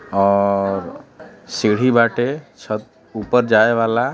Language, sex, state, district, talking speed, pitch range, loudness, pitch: Bhojpuri, male, Uttar Pradesh, Deoria, 100 wpm, 100-120 Hz, -17 LUFS, 110 Hz